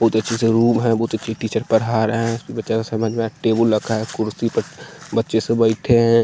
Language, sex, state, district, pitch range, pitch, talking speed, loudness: Hindi, male, Bihar, West Champaran, 110-115 Hz, 115 Hz, 220 wpm, -19 LUFS